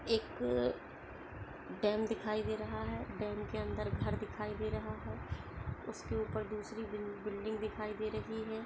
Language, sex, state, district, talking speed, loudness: Hindi, female, Maharashtra, Aurangabad, 150 wpm, -40 LUFS